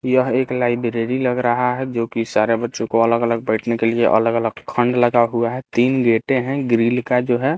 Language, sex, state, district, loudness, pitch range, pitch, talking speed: Hindi, male, Bihar, Patna, -18 LUFS, 115-125 Hz, 120 Hz, 230 wpm